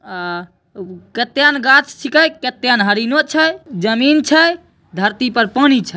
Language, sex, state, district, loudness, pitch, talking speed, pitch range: Maithili, female, Bihar, Begusarai, -14 LUFS, 255 Hz, 140 wpm, 205-295 Hz